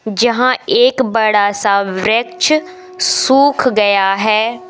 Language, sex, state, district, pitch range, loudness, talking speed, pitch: Hindi, female, Madhya Pradesh, Umaria, 210-285 Hz, -13 LUFS, 100 wpm, 235 Hz